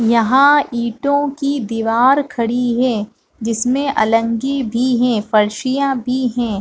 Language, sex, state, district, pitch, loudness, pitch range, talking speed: Hindi, female, Chhattisgarh, Bastar, 245 Hz, -16 LUFS, 230-270 Hz, 120 wpm